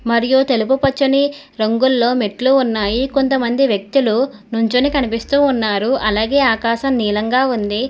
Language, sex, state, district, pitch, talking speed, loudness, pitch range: Telugu, female, Telangana, Hyderabad, 250 Hz, 115 wpm, -16 LUFS, 225-270 Hz